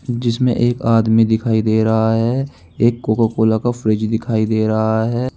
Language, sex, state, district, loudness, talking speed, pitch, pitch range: Hindi, male, Uttar Pradesh, Saharanpur, -16 LUFS, 180 wpm, 115 Hz, 110-120 Hz